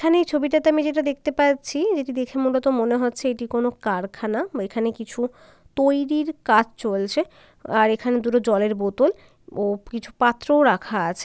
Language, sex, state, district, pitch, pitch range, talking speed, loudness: Bengali, female, West Bengal, Jalpaiguri, 245 Hz, 220-290 Hz, 170 wpm, -22 LUFS